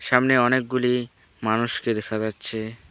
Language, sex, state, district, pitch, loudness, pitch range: Bengali, male, West Bengal, Alipurduar, 115 Hz, -23 LUFS, 110-125 Hz